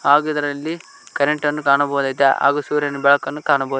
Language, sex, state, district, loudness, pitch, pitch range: Kannada, male, Karnataka, Koppal, -18 LUFS, 145 Hz, 140-150 Hz